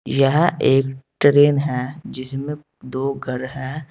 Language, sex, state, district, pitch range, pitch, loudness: Hindi, male, Uttar Pradesh, Saharanpur, 130-145 Hz, 135 Hz, -19 LUFS